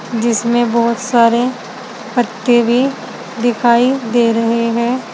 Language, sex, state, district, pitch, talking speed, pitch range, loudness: Hindi, female, Uttar Pradesh, Saharanpur, 240 Hz, 105 wpm, 235-250 Hz, -14 LUFS